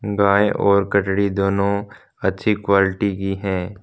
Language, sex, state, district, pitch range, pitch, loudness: Hindi, male, Punjab, Fazilka, 95-100 Hz, 100 Hz, -19 LUFS